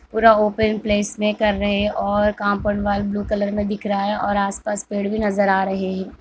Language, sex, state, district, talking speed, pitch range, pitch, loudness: Hindi, female, Jharkhand, Jamtara, 230 wpm, 200-210 Hz, 205 Hz, -20 LUFS